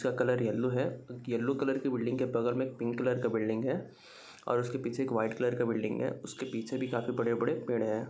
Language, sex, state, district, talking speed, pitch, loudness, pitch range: Hindi, male, Bihar, Saharsa, 245 wpm, 120 Hz, -33 LUFS, 115-130 Hz